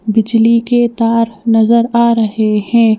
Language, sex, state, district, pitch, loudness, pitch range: Hindi, female, Madhya Pradesh, Bhopal, 230 Hz, -12 LUFS, 220-235 Hz